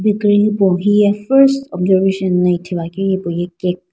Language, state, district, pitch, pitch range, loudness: Sumi, Nagaland, Dimapur, 190 Hz, 180-205 Hz, -15 LUFS